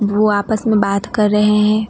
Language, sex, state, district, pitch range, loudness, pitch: Hindi, female, West Bengal, Alipurduar, 205-215 Hz, -15 LUFS, 210 Hz